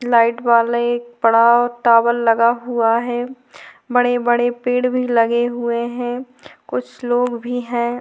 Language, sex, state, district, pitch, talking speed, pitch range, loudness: Hindi, female, Chhattisgarh, Korba, 240 Hz, 135 wpm, 235-245 Hz, -17 LUFS